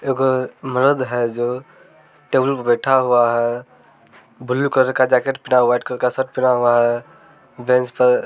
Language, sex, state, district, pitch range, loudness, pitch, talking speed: Maithili, male, Bihar, Samastipur, 120-130 Hz, -18 LUFS, 125 Hz, 180 wpm